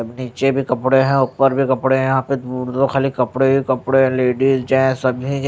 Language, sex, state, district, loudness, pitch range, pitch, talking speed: Hindi, male, Odisha, Nuapada, -17 LUFS, 130-135 Hz, 130 Hz, 230 wpm